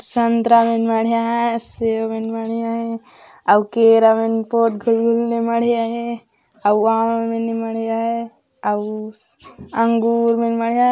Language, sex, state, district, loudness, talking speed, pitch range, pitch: Chhattisgarhi, female, Chhattisgarh, Raigarh, -18 LUFS, 120 wpm, 225-230 Hz, 230 Hz